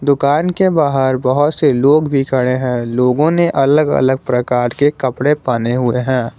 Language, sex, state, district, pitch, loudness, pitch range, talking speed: Hindi, male, Jharkhand, Garhwa, 135 Hz, -14 LUFS, 125-145 Hz, 180 wpm